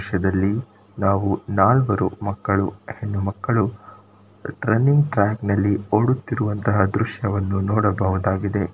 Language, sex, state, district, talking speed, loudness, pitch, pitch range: Kannada, male, Karnataka, Shimoga, 90 wpm, -21 LUFS, 100 Hz, 100-110 Hz